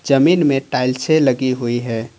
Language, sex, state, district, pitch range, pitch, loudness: Hindi, male, Jharkhand, Ranchi, 120-140 Hz, 130 Hz, -16 LUFS